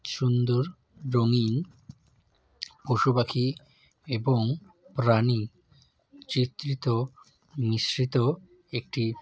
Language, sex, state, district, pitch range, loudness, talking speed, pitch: Bengali, male, West Bengal, Jalpaiguri, 120-145 Hz, -27 LUFS, 60 wpm, 130 Hz